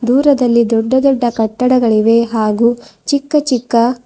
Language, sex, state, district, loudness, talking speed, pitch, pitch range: Kannada, female, Karnataka, Bidar, -13 LUFS, 105 wpm, 240 Hz, 230-260 Hz